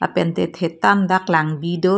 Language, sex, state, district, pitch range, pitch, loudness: Karbi, female, Assam, Karbi Anglong, 165-185 Hz, 175 Hz, -18 LUFS